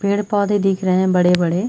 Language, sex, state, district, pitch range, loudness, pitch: Hindi, female, Chhattisgarh, Sarguja, 180-205 Hz, -17 LUFS, 190 Hz